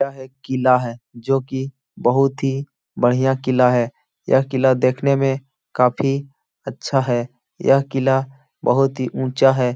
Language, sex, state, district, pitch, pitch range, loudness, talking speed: Hindi, male, Uttar Pradesh, Etah, 130 Hz, 125-135 Hz, -19 LUFS, 145 wpm